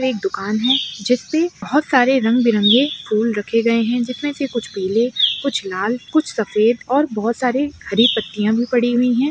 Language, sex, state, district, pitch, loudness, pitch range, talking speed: Hindi, female, Chhattisgarh, Bilaspur, 240 Hz, -18 LUFS, 220-265 Hz, 200 wpm